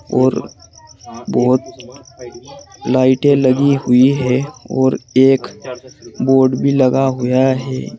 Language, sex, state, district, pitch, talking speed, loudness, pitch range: Hindi, male, Uttar Pradesh, Saharanpur, 130 Hz, 100 wpm, -14 LUFS, 125-135 Hz